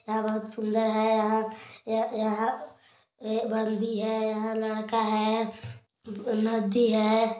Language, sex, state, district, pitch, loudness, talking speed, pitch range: Hindi, male, Chhattisgarh, Balrampur, 220 Hz, -28 LUFS, 115 wpm, 215-225 Hz